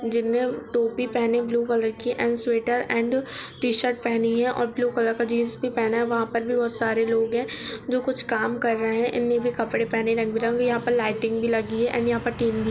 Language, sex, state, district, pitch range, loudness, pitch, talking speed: Hindi, male, Jharkhand, Jamtara, 230-240 Hz, -24 LUFS, 235 Hz, 245 wpm